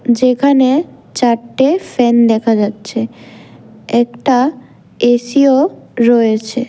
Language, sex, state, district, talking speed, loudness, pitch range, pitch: Bengali, female, Tripura, West Tripura, 70 wpm, -13 LUFS, 235-265 Hz, 240 Hz